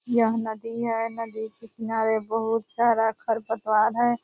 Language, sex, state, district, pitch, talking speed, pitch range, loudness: Hindi, female, Bihar, Purnia, 225 Hz, 155 wpm, 220-230 Hz, -25 LUFS